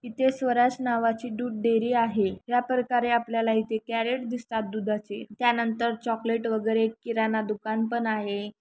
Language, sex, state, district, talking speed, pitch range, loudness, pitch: Marathi, female, Maharashtra, Chandrapur, 140 wpm, 220-240 Hz, -27 LUFS, 230 Hz